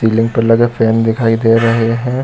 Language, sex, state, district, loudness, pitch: Hindi, male, Jharkhand, Sahebganj, -12 LUFS, 115 Hz